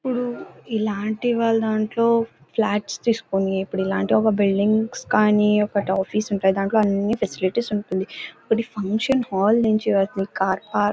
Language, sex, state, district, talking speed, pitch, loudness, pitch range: Telugu, female, Karnataka, Bellary, 130 wpm, 210 Hz, -21 LUFS, 195-225 Hz